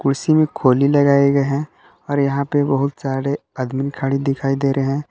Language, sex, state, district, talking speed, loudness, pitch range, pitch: Hindi, male, Jharkhand, Palamu, 190 wpm, -18 LUFS, 135-145 Hz, 140 Hz